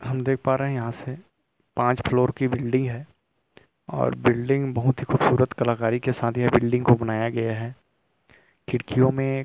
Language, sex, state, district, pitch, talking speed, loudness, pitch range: Hindi, male, Chhattisgarh, Rajnandgaon, 125 Hz, 190 wpm, -23 LUFS, 120-130 Hz